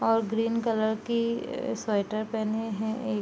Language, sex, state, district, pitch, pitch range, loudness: Hindi, female, Bihar, Supaul, 220 Hz, 215-225 Hz, -29 LUFS